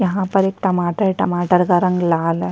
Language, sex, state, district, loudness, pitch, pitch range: Hindi, female, Uttarakhand, Tehri Garhwal, -17 LUFS, 180 Hz, 175-195 Hz